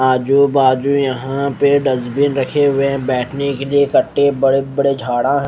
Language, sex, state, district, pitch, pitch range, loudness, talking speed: Hindi, male, Chandigarh, Chandigarh, 140 Hz, 130-140 Hz, -15 LUFS, 165 wpm